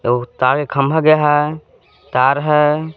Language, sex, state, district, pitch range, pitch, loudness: Hindi, male, Jharkhand, Palamu, 140-155 Hz, 150 Hz, -15 LUFS